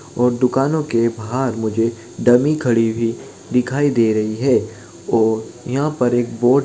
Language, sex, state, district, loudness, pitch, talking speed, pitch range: Hindi, male, Uttar Pradesh, Jalaun, -18 LUFS, 120 Hz, 165 wpm, 115-135 Hz